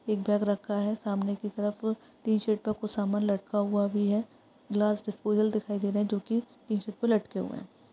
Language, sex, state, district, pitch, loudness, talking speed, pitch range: Hindi, female, Uttar Pradesh, Varanasi, 210 Hz, -30 LUFS, 225 wpm, 205-220 Hz